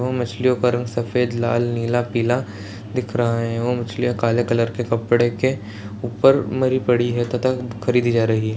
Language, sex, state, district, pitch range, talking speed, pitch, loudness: Hindi, male, Chhattisgarh, Sarguja, 115-125 Hz, 190 wpm, 120 Hz, -20 LUFS